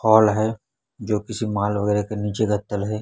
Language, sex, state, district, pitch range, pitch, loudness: Hindi, male, Chhattisgarh, Raipur, 105-110 Hz, 105 Hz, -22 LUFS